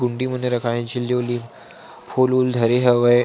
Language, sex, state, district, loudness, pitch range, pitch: Chhattisgarhi, male, Chhattisgarh, Sarguja, -20 LUFS, 120-125 Hz, 125 Hz